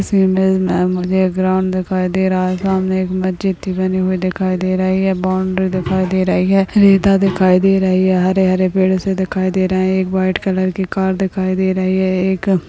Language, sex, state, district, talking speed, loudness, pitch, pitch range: Hindi, female, Rajasthan, Churu, 230 wpm, -15 LUFS, 185 Hz, 185-190 Hz